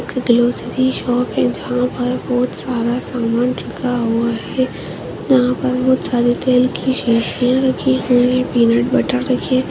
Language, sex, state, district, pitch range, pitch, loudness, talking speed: Hindi, female, Uttarakhand, Tehri Garhwal, 240-255 Hz, 250 Hz, -17 LUFS, 160 wpm